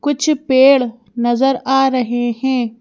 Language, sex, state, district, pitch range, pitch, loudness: Hindi, female, Madhya Pradesh, Bhopal, 240-270 Hz, 260 Hz, -15 LUFS